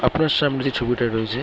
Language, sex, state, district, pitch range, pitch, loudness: Bengali, male, West Bengal, Kolkata, 120-140 Hz, 130 Hz, -21 LUFS